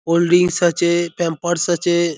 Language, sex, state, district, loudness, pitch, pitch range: Bengali, male, West Bengal, North 24 Parganas, -17 LUFS, 170 Hz, 170-175 Hz